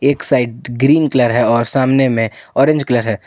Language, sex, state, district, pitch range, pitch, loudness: Hindi, male, Jharkhand, Ranchi, 115-135 Hz, 125 Hz, -14 LUFS